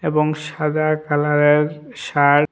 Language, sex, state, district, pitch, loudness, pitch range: Bengali, male, Tripura, West Tripura, 150 Hz, -18 LUFS, 150-155 Hz